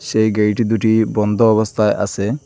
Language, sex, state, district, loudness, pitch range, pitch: Bengali, male, Assam, Hailakandi, -16 LUFS, 105-110 Hz, 110 Hz